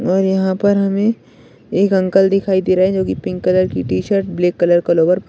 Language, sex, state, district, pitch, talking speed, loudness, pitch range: Hindi, male, Rajasthan, Nagaur, 185 Hz, 240 wpm, -16 LUFS, 175-195 Hz